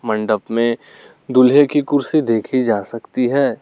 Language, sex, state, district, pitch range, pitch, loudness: Hindi, male, Arunachal Pradesh, Lower Dibang Valley, 115-140 Hz, 125 Hz, -17 LUFS